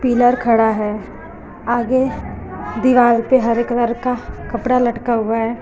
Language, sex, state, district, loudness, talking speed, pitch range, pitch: Hindi, female, Uttar Pradesh, Lucknow, -17 LUFS, 140 wpm, 230-250 Hz, 240 Hz